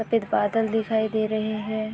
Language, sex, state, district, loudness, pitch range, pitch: Hindi, female, Uttar Pradesh, Budaun, -24 LUFS, 215-225 Hz, 220 Hz